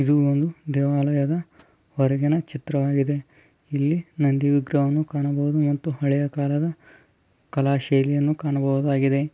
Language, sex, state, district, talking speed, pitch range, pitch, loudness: Kannada, male, Karnataka, Dharwad, 115 wpm, 140-150 Hz, 145 Hz, -23 LUFS